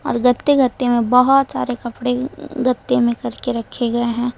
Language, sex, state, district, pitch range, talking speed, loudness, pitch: Hindi, female, Uttar Pradesh, Lalitpur, 240-255 Hz, 180 wpm, -18 LUFS, 245 Hz